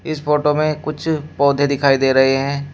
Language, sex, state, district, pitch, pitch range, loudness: Hindi, male, Uttar Pradesh, Shamli, 145 Hz, 140-155 Hz, -17 LUFS